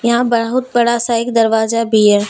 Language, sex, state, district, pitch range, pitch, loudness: Hindi, female, Jharkhand, Deoghar, 225-240 Hz, 230 Hz, -14 LUFS